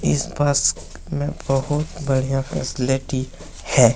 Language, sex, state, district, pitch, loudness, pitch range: Hindi, male, Chhattisgarh, Kabirdham, 135 Hz, -21 LUFS, 130-145 Hz